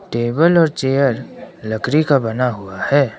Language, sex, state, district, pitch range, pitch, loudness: Hindi, male, Arunachal Pradesh, Lower Dibang Valley, 115-145 Hz, 135 Hz, -17 LUFS